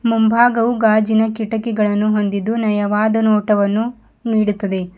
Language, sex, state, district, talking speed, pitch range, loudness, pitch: Kannada, female, Karnataka, Bidar, 85 wpm, 210-225 Hz, -16 LUFS, 220 Hz